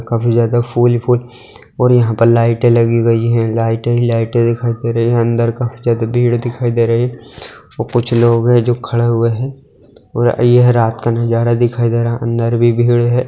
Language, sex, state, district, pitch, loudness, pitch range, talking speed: Hindi, male, Bihar, Muzaffarpur, 120 Hz, -14 LUFS, 115-120 Hz, 205 wpm